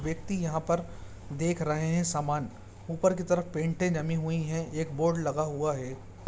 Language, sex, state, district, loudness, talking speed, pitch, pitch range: Hindi, male, Bihar, Saran, -30 LUFS, 180 wpm, 160 Hz, 145-165 Hz